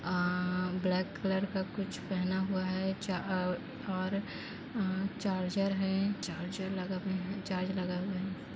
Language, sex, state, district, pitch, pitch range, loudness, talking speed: Hindi, female, Chhattisgarh, Kabirdham, 190 Hz, 185-195 Hz, -35 LUFS, 140 wpm